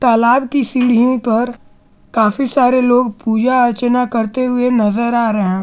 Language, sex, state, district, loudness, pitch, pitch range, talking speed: Hindi, male, Jharkhand, Garhwa, -14 LUFS, 245 Hz, 230-250 Hz, 150 wpm